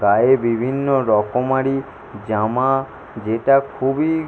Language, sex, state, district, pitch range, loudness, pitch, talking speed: Bengali, male, West Bengal, Jalpaiguri, 110-135 Hz, -18 LUFS, 130 Hz, 85 wpm